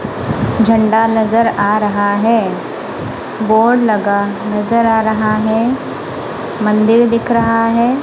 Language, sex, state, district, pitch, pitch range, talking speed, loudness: Hindi, female, Punjab, Kapurthala, 225 Hz, 215-230 Hz, 110 wpm, -14 LUFS